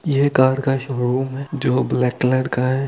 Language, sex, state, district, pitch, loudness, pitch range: Hindi, male, West Bengal, Jalpaiguri, 130 Hz, -19 LUFS, 130-135 Hz